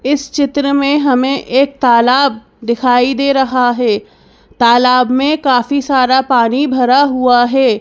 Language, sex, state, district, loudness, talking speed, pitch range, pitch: Hindi, female, Madhya Pradesh, Bhopal, -12 LUFS, 140 wpm, 245-280 Hz, 260 Hz